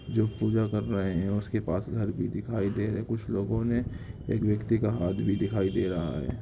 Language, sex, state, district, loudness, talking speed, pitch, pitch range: Hindi, male, Bihar, Samastipur, -29 LUFS, 225 wpm, 105 Hz, 95-115 Hz